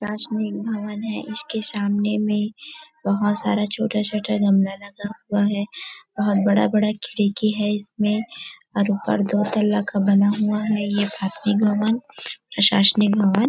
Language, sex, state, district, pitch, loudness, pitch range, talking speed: Hindi, female, Chhattisgarh, Bilaspur, 210 Hz, -21 LUFS, 205-215 Hz, 140 wpm